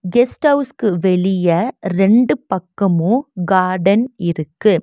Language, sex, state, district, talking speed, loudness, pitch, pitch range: Tamil, female, Tamil Nadu, Nilgiris, 85 wpm, -16 LUFS, 195 Hz, 180-240 Hz